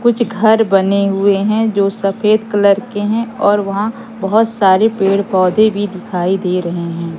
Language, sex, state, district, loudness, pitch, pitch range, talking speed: Hindi, female, Madhya Pradesh, Katni, -14 LUFS, 205 Hz, 195-220 Hz, 165 wpm